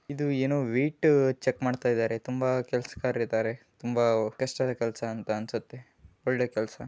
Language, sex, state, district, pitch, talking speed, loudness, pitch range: Kannada, male, Karnataka, Raichur, 125 Hz, 150 wpm, -29 LUFS, 115-130 Hz